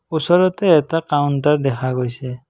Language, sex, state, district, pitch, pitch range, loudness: Assamese, male, Assam, Kamrup Metropolitan, 145 Hz, 130-165 Hz, -17 LUFS